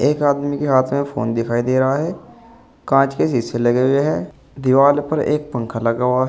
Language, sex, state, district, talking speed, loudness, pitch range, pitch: Hindi, male, Uttar Pradesh, Saharanpur, 220 wpm, -18 LUFS, 125-145 Hz, 135 Hz